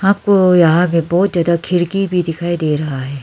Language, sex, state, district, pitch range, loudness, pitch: Hindi, female, Arunachal Pradesh, Lower Dibang Valley, 165-185 Hz, -14 LUFS, 175 Hz